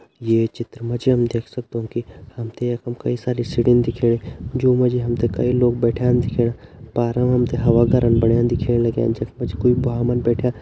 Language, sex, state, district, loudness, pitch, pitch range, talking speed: Hindi, male, Uttarakhand, Tehri Garhwal, -20 LUFS, 120 Hz, 115-125 Hz, 185 wpm